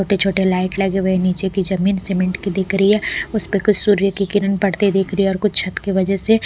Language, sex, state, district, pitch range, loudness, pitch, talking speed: Hindi, female, Odisha, Malkangiri, 190-200 Hz, -18 LUFS, 195 Hz, 270 wpm